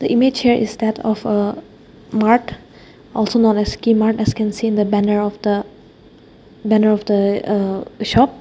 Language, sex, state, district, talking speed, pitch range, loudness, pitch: English, female, Nagaland, Dimapur, 180 wpm, 205-225 Hz, -17 LUFS, 220 Hz